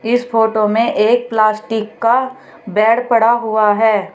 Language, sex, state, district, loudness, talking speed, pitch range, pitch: Hindi, female, Uttar Pradesh, Shamli, -14 LUFS, 145 wpm, 215-235 Hz, 225 Hz